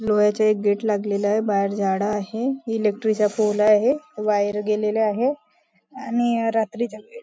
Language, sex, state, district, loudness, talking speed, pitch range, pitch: Marathi, female, Maharashtra, Nagpur, -22 LUFS, 165 wpm, 210-225 Hz, 215 Hz